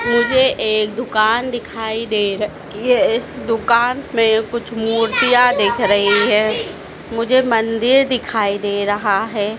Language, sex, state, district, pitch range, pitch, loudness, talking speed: Hindi, female, Madhya Pradesh, Dhar, 215-240 Hz, 225 Hz, -16 LUFS, 125 wpm